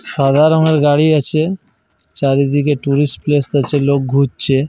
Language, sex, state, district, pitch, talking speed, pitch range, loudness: Bengali, male, Jharkhand, Jamtara, 140 Hz, 130 wpm, 135-150 Hz, -14 LUFS